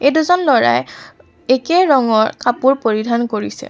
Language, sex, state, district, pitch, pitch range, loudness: Assamese, female, Assam, Kamrup Metropolitan, 255 Hz, 225-290 Hz, -15 LUFS